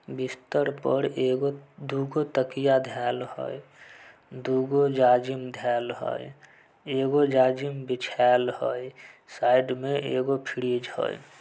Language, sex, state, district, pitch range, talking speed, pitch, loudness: Maithili, male, Bihar, Samastipur, 125-135 Hz, 115 wpm, 130 Hz, -26 LUFS